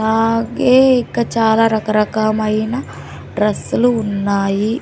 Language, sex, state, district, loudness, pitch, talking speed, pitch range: Telugu, female, Andhra Pradesh, Sri Satya Sai, -15 LUFS, 220 Hz, 75 wpm, 215-235 Hz